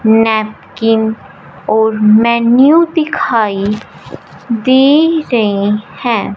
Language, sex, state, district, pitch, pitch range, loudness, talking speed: Hindi, female, Punjab, Fazilka, 220 Hz, 210-255 Hz, -11 LUFS, 65 wpm